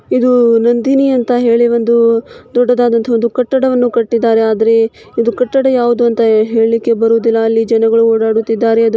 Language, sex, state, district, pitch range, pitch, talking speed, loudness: Kannada, female, Karnataka, Shimoga, 225-245 Hz, 230 Hz, 140 wpm, -12 LUFS